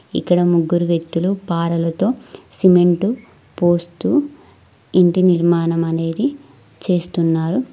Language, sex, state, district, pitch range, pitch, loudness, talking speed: Telugu, female, Telangana, Mahabubabad, 170-195 Hz, 175 Hz, -17 LUFS, 80 wpm